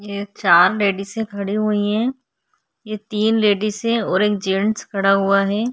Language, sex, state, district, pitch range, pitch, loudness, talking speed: Hindi, female, Uttarakhand, Tehri Garhwal, 200-215 Hz, 210 Hz, -18 LUFS, 155 wpm